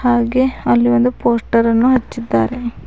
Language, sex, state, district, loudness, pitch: Kannada, female, Karnataka, Bidar, -15 LUFS, 230 Hz